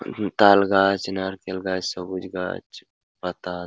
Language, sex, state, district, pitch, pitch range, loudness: Bengali, male, West Bengal, Paschim Medinipur, 95 Hz, 90-100 Hz, -22 LUFS